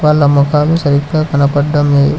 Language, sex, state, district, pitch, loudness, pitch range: Telugu, male, Telangana, Hyderabad, 145 Hz, -12 LUFS, 140-150 Hz